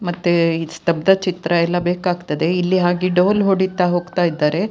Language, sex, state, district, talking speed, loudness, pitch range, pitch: Kannada, female, Karnataka, Dakshina Kannada, 155 wpm, -18 LUFS, 170-185 Hz, 175 Hz